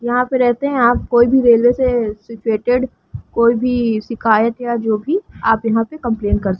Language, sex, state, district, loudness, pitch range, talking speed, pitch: Hindi, female, Jharkhand, Sahebganj, -16 LUFS, 225-245 Hz, 190 wpm, 240 Hz